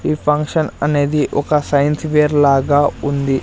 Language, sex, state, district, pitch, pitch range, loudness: Telugu, male, Andhra Pradesh, Sri Satya Sai, 145 Hz, 145-150 Hz, -16 LUFS